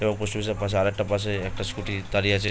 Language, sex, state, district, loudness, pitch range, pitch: Bengali, male, West Bengal, Jhargram, -26 LUFS, 100-105 Hz, 100 Hz